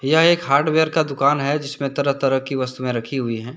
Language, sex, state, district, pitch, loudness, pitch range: Hindi, male, Jharkhand, Deoghar, 140 Hz, -19 LUFS, 130-150 Hz